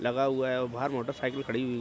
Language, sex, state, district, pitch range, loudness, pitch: Hindi, male, Bihar, Araria, 120-135 Hz, -31 LUFS, 130 Hz